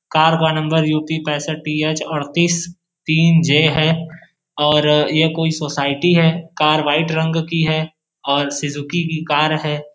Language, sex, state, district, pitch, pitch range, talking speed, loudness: Hindi, male, Uttar Pradesh, Varanasi, 155 Hz, 150-160 Hz, 150 wpm, -17 LUFS